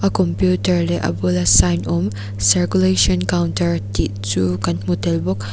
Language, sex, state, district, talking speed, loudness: Mizo, female, Mizoram, Aizawl, 150 wpm, -18 LUFS